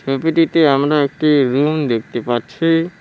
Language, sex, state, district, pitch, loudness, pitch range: Bengali, male, West Bengal, Cooch Behar, 150 Hz, -16 LUFS, 135-165 Hz